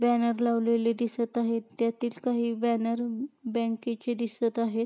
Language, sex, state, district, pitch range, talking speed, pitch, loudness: Marathi, female, Maharashtra, Pune, 230-240 Hz, 125 wpm, 235 Hz, -29 LUFS